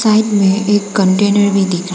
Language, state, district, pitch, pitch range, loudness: Hindi, Arunachal Pradesh, Papum Pare, 200 Hz, 195-205 Hz, -13 LUFS